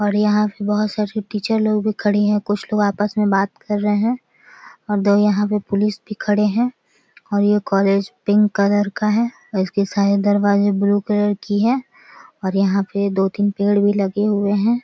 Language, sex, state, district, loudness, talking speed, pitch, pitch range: Maithili, female, Bihar, Samastipur, -18 LUFS, 215 wpm, 205 Hz, 200-210 Hz